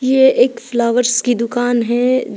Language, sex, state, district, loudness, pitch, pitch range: Hindi, female, Uttar Pradesh, Shamli, -15 LUFS, 245 Hz, 240-255 Hz